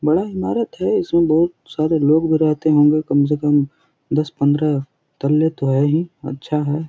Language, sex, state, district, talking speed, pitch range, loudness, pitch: Hindi, male, Bihar, Jahanabad, 175 wpm, 145-160 Hz, -18 LUFS, 150 Hz